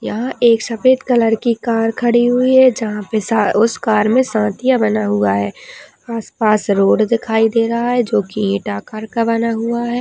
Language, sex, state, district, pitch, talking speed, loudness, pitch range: Hindi, female, Uttar Pradesh, Hamirpur, 225 Hz, 190 wpm, -15 LUFS, 215-240 Hz